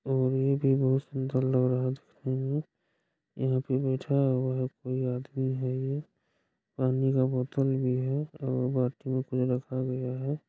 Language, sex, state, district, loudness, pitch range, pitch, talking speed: Hindi, male, Bihar, Jahanabad, -29 LUFS, 130-135 Hz, 130 Hz, 165 wpm